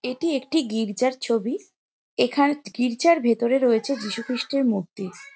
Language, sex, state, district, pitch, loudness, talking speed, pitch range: Bengali, female, West Bengal, Jalpaiguri, 250 Hz, -23 LUFS, 110 wpm, 230-275 Hz